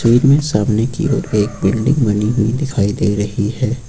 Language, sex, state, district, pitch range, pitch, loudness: Hindi, male, Uttar Pradesh, Lucknow, 105-130 Hz, 115 Hz, -16 LUFS